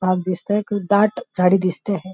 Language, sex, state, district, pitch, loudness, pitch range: Marathi, female, Maharashtra, Nagpur, 195 Hz, -19 LUFS, 185-205 Hz